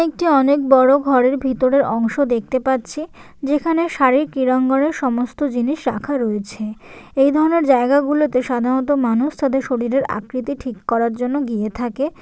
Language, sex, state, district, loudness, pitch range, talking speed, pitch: Bengali, female, West Bengal, Jalpaiguri, -18 LUFS, 245-285 Hz, 140 wpm, 265 Hz